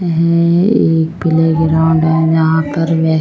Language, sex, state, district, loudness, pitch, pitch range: Hindi, female, Jharkhand, Sahebganj, -12 LUFS, 160 Hz, 160-165 Hz